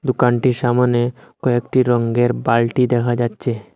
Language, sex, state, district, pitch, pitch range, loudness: Bengali, male, Assam, Hailakandi, 120 Hz, 120-125 Hz, -17 LUFS